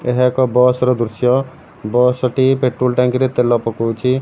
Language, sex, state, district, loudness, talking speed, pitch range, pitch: Odia, male, Odisha, Malkangiri, -15 LUFS, 155 wpm, 125-130 Hz, 125 Hz